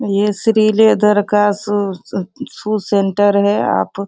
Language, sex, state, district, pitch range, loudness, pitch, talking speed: Hindi, female, Bihar, Sitamarhi, 200-210 Hz, -15 LUFS, 205 Hz, 145 wpm